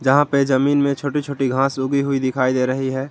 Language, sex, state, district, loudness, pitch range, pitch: Hindi, male, Jharkhand, Garhwa, -19 LUFS, 130-140 Hz, 135 Hz